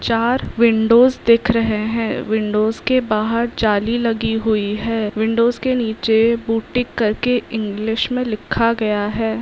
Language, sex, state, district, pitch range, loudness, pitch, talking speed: Hindi, female, Bihar, Saharsa, 220-235 Hz, -18 LUFS, 225 Hz, 140 wpm